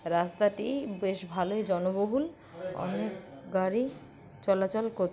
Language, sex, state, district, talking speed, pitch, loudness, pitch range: Bengali, female, West Bengal, Purulia, 105 wpm, 190 Hz, -31 LUFS, 185-215 Hz